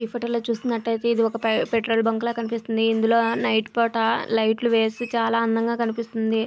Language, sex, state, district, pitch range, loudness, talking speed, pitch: Telugu, female, Andhra Pradesh, Visakhapatnam, 225-230 Hz, -23 LUFS, 175 wpm, 230 Hz